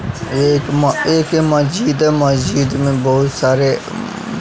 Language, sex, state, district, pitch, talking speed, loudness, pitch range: Hindi, male, Bihar, West Champaran, 145 Hz, 150 wpm, -15 LUFS, 135-160 Hz